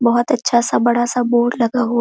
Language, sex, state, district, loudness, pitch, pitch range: Hindi, female, Chhattisgarh, Korba, -16 LUFS, 240 Hz, 235-245 Hz